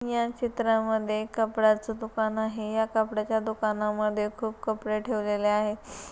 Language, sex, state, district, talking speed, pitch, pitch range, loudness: Marathi, female, Maharashtra, Pune, 125 wpm, 220 Hz, 215-220 Hz, -28 LUFS